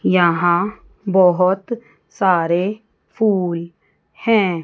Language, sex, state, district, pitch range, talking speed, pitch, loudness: Hindi, female, Chandigarh, Chandigarh, 175-210 Hz, 65 wpm, 185 Hz, -17 LUFS